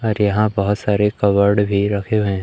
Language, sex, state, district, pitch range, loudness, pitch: Hindi, male, Madhya Pradesh, Umaria, 100-105 Hz, -17 LUFS, 105 Hz